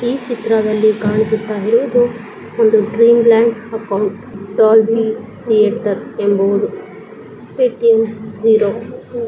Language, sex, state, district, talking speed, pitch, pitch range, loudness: Kannada, female, Karnataka, Bijapur, 60 wpm, 220 Hz, 215-230 Hz, -14 LUFS